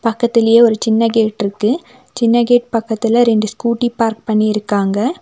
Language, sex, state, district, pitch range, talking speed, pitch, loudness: Tamil, female, Tamil Nadu, Nilgiris, 220-240 Hz, 140 wpm, 230 Hz, -14 LUFS